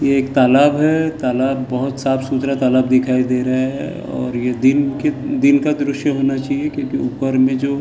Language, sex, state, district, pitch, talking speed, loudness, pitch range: Hindi, male, Maharashtra, Gondia, 135 Hz, 175 wpm, -17 LUFS, 130-145 Hz